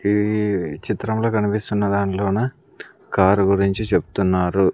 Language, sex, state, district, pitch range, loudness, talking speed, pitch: Telugu, male, Andhra Pradesh, Sri Satya Sai, 95-105 Hz, -20 LUFS, 100 wpm, 100 Hz